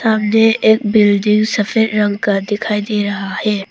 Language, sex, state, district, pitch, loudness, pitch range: Hindi, female, Arunachal Pradesh, Papum Pare, 210 Hz, -14 LUFS, 205-220 Hz